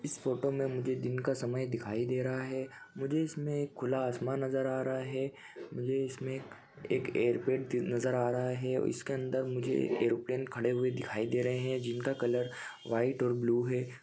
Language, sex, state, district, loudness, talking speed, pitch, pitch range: Hindi, male, Chhattisgarh, Bilaspur, -34 LUFS, 200 wpm, 130 Hz, 125-130 Hz